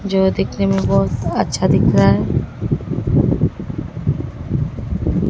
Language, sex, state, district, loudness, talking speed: Hindi, female, Maharashtra, Mumbai Suburban, -18 LUFS, 90 wpm